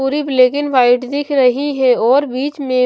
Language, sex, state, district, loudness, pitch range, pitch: Hindi, female, Maharashtra, Washim, -14 LUFS, 255-285 Hz, 270 Hz